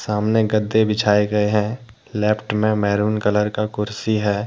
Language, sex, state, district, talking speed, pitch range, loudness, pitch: Hindi, male, Jharkhand, Deoghar, 160 wpm, 105-110 Hz, -19 LUFS, 105 Hz